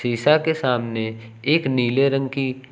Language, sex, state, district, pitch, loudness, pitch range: Hindi, male, Uttar Pradesh, Lucknow, 130 Hz, -21 LUFS, 120-140 Hz